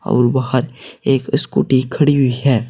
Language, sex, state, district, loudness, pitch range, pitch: Hindi, male, Uttar Pradesh, Saharanpur, -16 LUFS, 125-145 Hz, 130 Hz